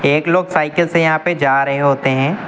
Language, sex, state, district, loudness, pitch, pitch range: Hindi, male, Uttar Pradesh, Lucknow, -15 LUFS, 155 Hz, 140-170 Hz